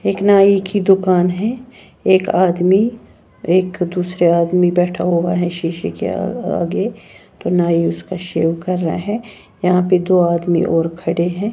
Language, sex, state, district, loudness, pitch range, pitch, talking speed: Hindi, female, Haryana, Jhajjar, -16 LUFS, 170-190 Hz, 180 Hz, 155 wpm